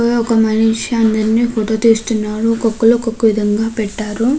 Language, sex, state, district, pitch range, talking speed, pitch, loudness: Telugu, female, Andhra Pradesh, Krishna, 220-230 Hz, 135 wpm, 225 Hz, -15 LUFS